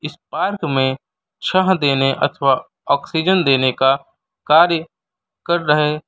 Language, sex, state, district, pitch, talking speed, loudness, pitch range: Hindi, male, Uttar Pradesh, Lalitpur, 150 Hz, 120 wpm, -17 LUFS, 135-180 Hz